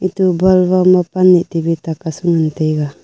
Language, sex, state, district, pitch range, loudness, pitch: Wancho, female, Arunachal Pradesh, Longding, 160-185 Hz, -14 LUFS, 175 Hz